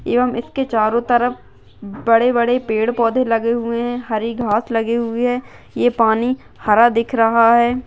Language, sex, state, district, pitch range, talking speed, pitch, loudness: Hindi, female, Maharashtra, Aurangabad, 230-245 Hz, 160 wpm, 235 Hz, -17 LUFS